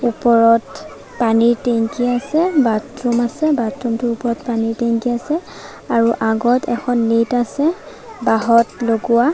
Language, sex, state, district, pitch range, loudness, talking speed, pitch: Assamese, female, Assam, Sonitpur, 230-245 Hz, -17 LUFS, 115 wpm, 235 Hz